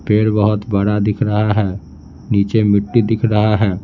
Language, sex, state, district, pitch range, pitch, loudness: Hindi, male, Bihar, Patna, 100-110 Hz, 105 Hz, -16 LUFS